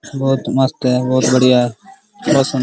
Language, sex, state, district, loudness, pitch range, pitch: Hindi, male, Bihar, Araria, -15 LUFS, 125-135 Hz, 130 Hz